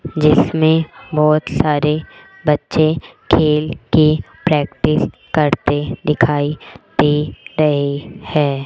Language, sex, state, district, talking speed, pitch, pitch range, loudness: Hindi, female, Rajasthan, Jaipur, 85 wpm, 150 Hz, 145-155 Hz, -16 LUFS